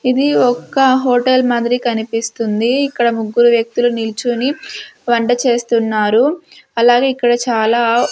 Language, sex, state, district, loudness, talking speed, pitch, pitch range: Telugu, female, Andhra Pradesh, Sri Satya Sai, -14 LUFS, 105 wpm, 240 Hz, 230-255 Hz